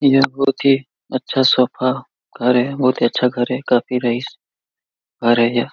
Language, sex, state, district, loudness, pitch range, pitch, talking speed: Hindi, male, Jharkhand, Jamtara, -17 LUFS, 125-135 Hz, 130 Hz, 155 wpm